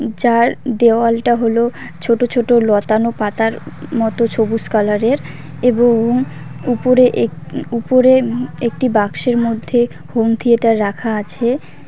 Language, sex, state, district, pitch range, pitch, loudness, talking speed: Bengali, female, West Bengal, Cooch Behar, 225-245 Hz, 235 Hz, -15 LUFS, 105 wpm